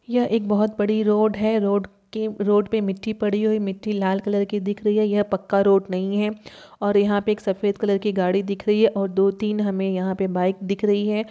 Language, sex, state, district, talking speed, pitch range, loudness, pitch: Hindi, female, Uttar Pradesh, Etah, 240 wpm, 195-215 Hz, -22 LUFS, 205 Hz